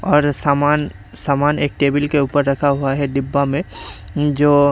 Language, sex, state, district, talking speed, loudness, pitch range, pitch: Hindi, male, Haryana, Rohtak, 165 wpm, -17 LUFS, 140-145 Hz, 145 Hz